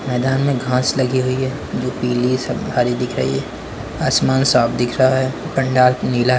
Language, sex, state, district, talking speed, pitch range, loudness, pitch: Hindi, male, West Bengal, Purulia, 190 wpm, 125-130 Hz, -18 LUFS, 130 Hz